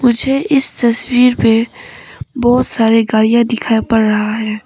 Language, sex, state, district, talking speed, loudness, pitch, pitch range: Hindi, female, Arunachal Pradesh, Papum Pare, 140 wpm, -12 LUFS, 235 Hz, 225-250 Hz